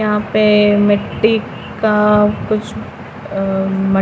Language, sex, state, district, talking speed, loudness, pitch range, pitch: Hindi, female, Bihar, Patna, 105 wpm, -15 LUFS, 195-215 Hz, 210 Hz